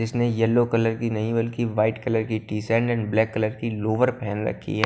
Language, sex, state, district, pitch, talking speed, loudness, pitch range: Hindi, male, Punjab, Kapurthala, 115 Hz, 220 wpm, -24 LUFS, 110-115 Hz